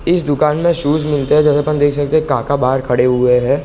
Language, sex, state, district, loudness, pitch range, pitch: Hindi, male, Bihar, Sitamarhi, -14 LUFS, 135-150 Hz, 145 Hz